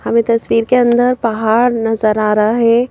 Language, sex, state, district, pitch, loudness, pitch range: Hindi, female, Madhya Pradesh, Bhopal, 230 Hz, -13 LUFS, 225-240 Hz